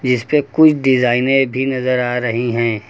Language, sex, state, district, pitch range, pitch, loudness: Hindi, male, Uttar Pradesh, Lucknow, 120-135 Hz, 125 Hz, -15 LUFS